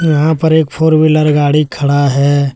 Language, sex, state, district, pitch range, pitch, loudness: Hindi, male, Jharkhand, Deoghar, 145-160 Hz, 150 Hz, -11 LUFS